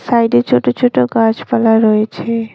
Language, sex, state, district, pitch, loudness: Bengali, female, West Bengal, Cooch Behar, 220 Hz, -13 LUFS